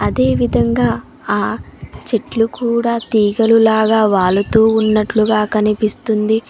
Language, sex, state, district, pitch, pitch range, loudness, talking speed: Telugu, female, Telangana, Mahabubabad, 215 Hz, 195-225 Hz, -15 LUFS, 75 wpm